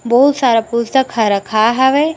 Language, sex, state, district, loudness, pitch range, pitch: Chhattisgarhi, female, Chhattisgarh, Raigarh, -13 LUFS, 225-265 Hz, 240 Hz